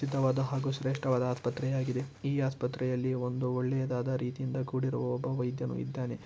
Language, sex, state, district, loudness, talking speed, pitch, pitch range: Kannada, male, Karnataka, Shimoga, -33 LUFS, 135 wpm, 130 Hz, 125-135 Hz